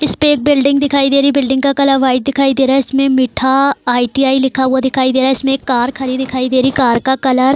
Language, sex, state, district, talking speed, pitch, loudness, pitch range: Hindi, female, Bihar, Darbhanga, 285 wpm, 265 Hz, -13 LUFS, 260-275 Hz